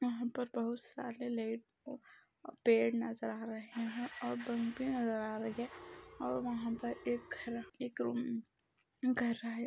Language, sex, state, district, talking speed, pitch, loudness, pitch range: Hindi, female, Uttar Pradesh, Budaun, 160 wpm, 235 Hz, -39 LUFS, 225-245 Hz